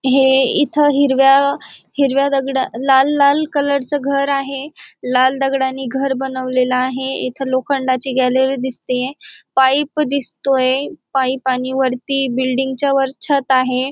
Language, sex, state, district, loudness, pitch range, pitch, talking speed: Marathi, female, Maharashtra, Aurangabad, -16 LUFS, 260-280 Hz, 270 Hz, 125 wpm